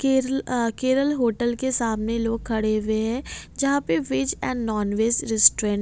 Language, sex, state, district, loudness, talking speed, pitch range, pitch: Hindi, female, Bihar, Kaimur, -23 LUFS, 185 wpm, 215-255 Hz, 230 Hz